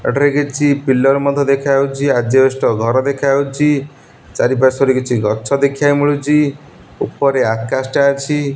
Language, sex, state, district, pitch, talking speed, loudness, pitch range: Odia, male, Odisha, Nuapada, 140 Hz, 125 wpm, -15 LUFS, 130-140 Hz